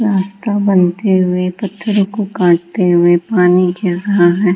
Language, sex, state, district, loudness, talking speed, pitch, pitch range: Hindi, female, Bihar, Gaya, -13 LUFS, 145 wpm, 185 Hz, 180-205 Hz